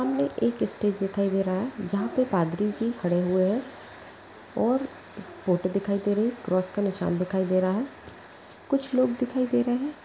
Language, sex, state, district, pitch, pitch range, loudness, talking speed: Hindi, female, Bihar, Gaya, 200 Hz, 185-245 Hz, -27 LUFS, 195 wpm